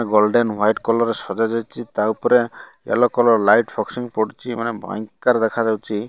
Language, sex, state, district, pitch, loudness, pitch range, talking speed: Odia, male, Odisha, Malkangiri, 115 Hz, -19 LUFS, 110-120 Hz, 150 wpm